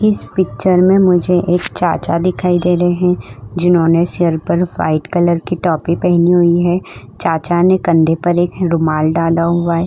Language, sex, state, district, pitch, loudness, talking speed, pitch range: Hindi, female, Uttar Pradesh, Budaun, 175 Hz, -14 LUFS, 175 wpm, 165-180 Hz